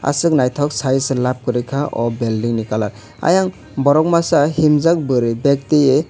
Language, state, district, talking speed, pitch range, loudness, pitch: Kokborok, Tripura, West Tripura, 175 wpm, 120-155 Hz, -16 LUFS, 135 Hz